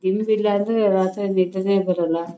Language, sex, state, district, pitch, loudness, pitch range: Kannada, female, Karnataka, Shimoga, 195 Hz, -20 LUFS, 185-205 Hz